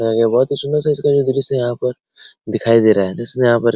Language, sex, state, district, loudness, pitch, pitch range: Hindi, male, Bihar, Araria, -16 LUFS, 125 Hz, 115-140 Hz